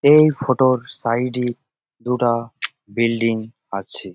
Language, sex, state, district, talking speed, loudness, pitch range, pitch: Bengali, male, West Bengal, Jalpaiguri, 115 wpm, -20 LUFS, 115-130 Hz, 120 Hz